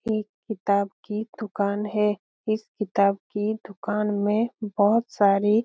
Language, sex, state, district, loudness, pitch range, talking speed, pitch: Hindi, female, Bihar, Lakhisarai, -25 LUFS, 200-220 Hz, 140 wpm, 210 Hz